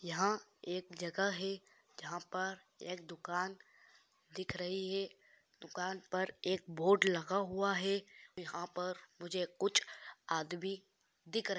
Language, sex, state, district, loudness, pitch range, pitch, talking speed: Hindi, male, Andhra Pradesh, Guntur, -38 LUFS, 175-195 Hz, 185 Hz, 35 wpm